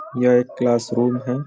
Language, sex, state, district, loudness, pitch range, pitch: Hindi, male, Bihar, Araria, -19 LUFS, 120-125 Hz, 125 Hz